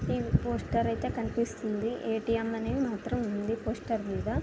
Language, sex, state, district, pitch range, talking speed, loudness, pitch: Telugu, female, Andhra Pradesh, Anantapur, 220-230 Hz, 135 wpm, -31 LUFS, 225 Hz